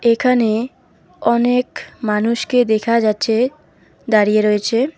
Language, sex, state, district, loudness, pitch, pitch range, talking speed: Bengali, female, West Bengal, Alipurduar, -16 LUFS, 230 Hz, 215-245 Hz, 85 wpm